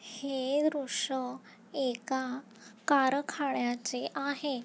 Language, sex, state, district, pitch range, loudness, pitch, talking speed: Marathi, female, Maharashtra, Nagpur, 245-280 Hz, -32 LUFS, 265 Hz, 65 wpm